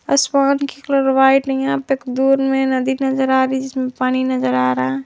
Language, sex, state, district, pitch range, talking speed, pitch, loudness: Hindi, female, Jharkhand, Palamu, 260-270 Hz, 225 wpm, 265 Hz, -17 LUFS